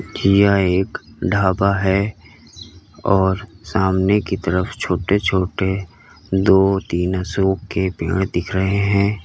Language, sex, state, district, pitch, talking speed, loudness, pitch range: Hindi, male, Uttar Pradesh, Lalitpur, 95 Hz, 115 wpm, -18 LUFS, 95-100 Hz